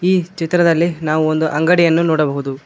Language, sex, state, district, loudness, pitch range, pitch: Kannada, male, Karnataka, Koppal, -15 LUFS, 155-170 Hz, 165 Hz